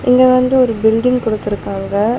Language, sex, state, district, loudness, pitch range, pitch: Tamil, female, Tamil Nadu, Chennai, -14 LUFS, 210-250 Hz, 230 Hz